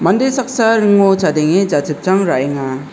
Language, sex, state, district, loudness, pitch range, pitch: Garo, male, Meghalaya, South Garo Hills, -14 LUFS, 145-205 Hz, 190 Hz